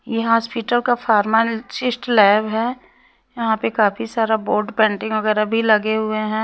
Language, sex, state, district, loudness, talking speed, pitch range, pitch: Hindi, female, Bihar, West Champaran, -18 LUFS, 160 wpm, 215-230 Hz, 220 Hz